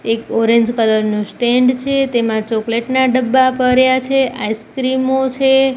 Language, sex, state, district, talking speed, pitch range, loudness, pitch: Gujarati, female, Gujarat, Gandhinagar, 145 wpm, 230-260 Hz, -15 LUFS, 255 Hz